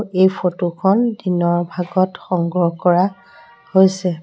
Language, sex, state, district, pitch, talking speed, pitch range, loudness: Assamese, female, Assam, Sonitpur, 185 Hz, 100 wpm, 175-195 Hz, -17 LUFS